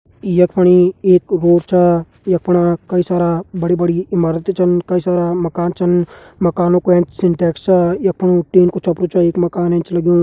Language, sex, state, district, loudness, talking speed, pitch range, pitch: Hindi, male, Uttarakhand, Tehri Garhwal, -14 LUFS, 180 wpm, 175-180 Hz, 175 Hz